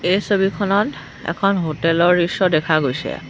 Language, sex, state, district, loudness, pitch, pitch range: Assamese, female, Assam, Sonitpur, -18 LUFS, 175 Hz, 155-195 Hz